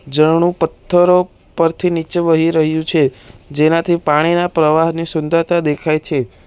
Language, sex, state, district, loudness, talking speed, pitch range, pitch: Gujarati, male, Gujarat, Valsad, -15 LUFS, 120 wpm, 155-170 Hz, 160 Hz